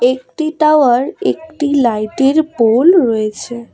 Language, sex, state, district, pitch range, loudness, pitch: Bengali, female, West Bengal, Cooch Behar, 235-310 Hz, -13 LUFS, 270 Hz